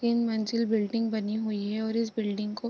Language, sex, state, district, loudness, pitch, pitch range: Hindi, female, Bihar, East Champaran, -29 LUFS, 220 Hz, 215-230 Hz